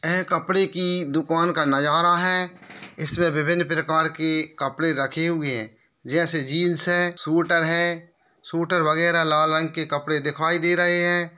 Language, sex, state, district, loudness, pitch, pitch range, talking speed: Hindi, male, Bihar, Darbhanga, -21 LUFS, 165 Hz, 155-175 Hz, 155 wpm